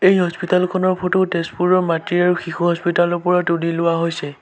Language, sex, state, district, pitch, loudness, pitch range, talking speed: Assamese, male, Assam, Sonitpur, 175 Hz, -18 LUFS, 170-180 Hz, 190 wpm